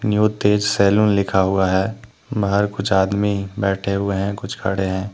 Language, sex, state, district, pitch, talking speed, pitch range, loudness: Hindi, male, Jharkhand, Deoghar, 100 Hz, 175 wpm, 95-105 Hz, -19 LUFS